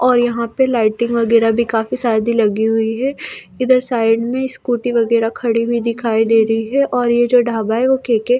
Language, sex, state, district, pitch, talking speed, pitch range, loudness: Hindi, female, Delhi, New Delhi, 235 Hz, 205 wpm, 225-250 Hz, -16 LUFS